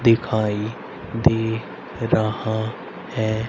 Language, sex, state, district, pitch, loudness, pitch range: Hindi, male, Haryana, Rohtak, 110 Hz, -23 LUFS, 110-115 Hz